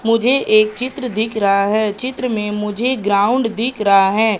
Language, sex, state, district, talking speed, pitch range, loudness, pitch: Hindi, female, Madhya Pradesh, Katni, 175 wpm, 210-250 Hz, -16 LUFS, 220 Hz